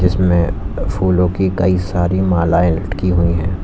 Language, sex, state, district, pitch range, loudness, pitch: Hindi, male, Uttar Pradesh, Lalitpur, 85-95 Hz, -16 LUFS, 90 Hz